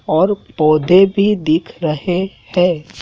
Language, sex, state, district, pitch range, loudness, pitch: Hindi, male, Madhya Pradesh, Dhar, 160-195 Hz, -15 LUFS, 180 Hz